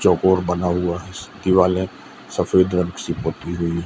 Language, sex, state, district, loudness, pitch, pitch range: Hindi, male, Madhya Pradesh, Umaria, -20 LUFS, 90 Hz, 85-95 Hz